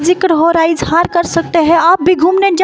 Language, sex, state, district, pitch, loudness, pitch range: Hindi, female, Himachal Pradesh, Shimla, 340 Hz, -11 LUFS, 330-360 Hz